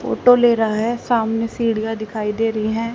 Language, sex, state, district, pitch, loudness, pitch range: Hindi, female, Haryana, Jhajjar, 225 Hz, -18 LUFS, 220-235 Hz